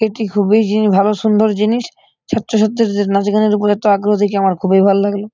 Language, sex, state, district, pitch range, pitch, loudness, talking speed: Bengali, male, West Bengal, Purulia, 200-220 Hz, 210 Hz, -14 LUFS, 190 wpm